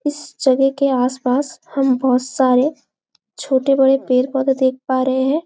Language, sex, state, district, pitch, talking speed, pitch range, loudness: Hindi, female, Chhattisgarh, Bastar, 265 Hz, 165 wpm, 260-280 Hz, -17 LUFS